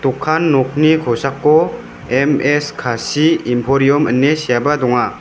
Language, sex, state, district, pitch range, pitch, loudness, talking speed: Garo, male, Meghalaya, West Garo Hills, 125-150 Hz, 140 Hz, -15 LUFS, 105 wpm